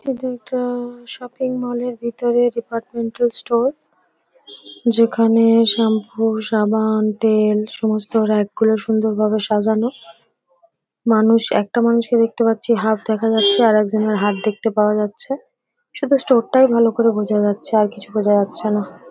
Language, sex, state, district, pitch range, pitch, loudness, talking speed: Bengali, female, West Bengal, Paschim Medinipur, 215-240 Hz, 225 Hz, -17 LUFS, 145 wpm